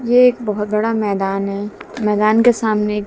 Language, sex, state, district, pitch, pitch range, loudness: Hindi, female, Haryana, Jhajjar, 210 Hz, 210-230 Hz, -17 LUFS